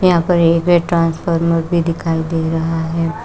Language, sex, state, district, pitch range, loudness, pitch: Hindi, female, Uttar Pradesh, Shamli, 165-170 Hz, -16 LUFS, 165 Hz